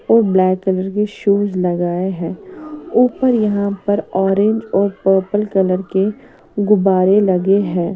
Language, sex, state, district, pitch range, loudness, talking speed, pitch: Hindi, female, Odisha, Sambalpur, 190-210 Hz, -16 LUFS, 135 wpm, 200 Hz